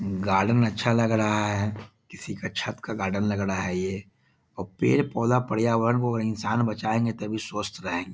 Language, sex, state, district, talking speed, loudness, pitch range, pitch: Hindi, male, Bihar, East Champaran, 175 wpm, -26 LUFS, 100-115 Hz, 110 Hz